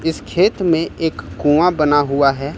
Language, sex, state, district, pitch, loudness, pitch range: Hindi, male, Uttar Pradesh, Lucknow, 150 Hz, -16 LUFS, 145-165 Hz